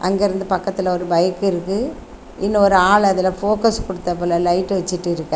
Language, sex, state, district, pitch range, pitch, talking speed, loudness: Tamil, female, Tamil Nadu, Kanyakumari, 175-200 Hz, 185 Hz, 145 wpm, -18 LUFS